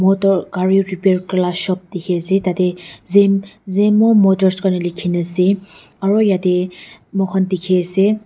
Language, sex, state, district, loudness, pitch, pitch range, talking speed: Nagamese, female, Nagaland, Dimapur, -16 LUFS, 190 Hz, 180-195 Hz, 140 wpm